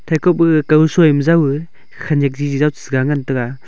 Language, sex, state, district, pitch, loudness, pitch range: Wancho, male, Arunachal Pradesh, Longding, 150 Hz, -15 LUFS, 140-160 Hz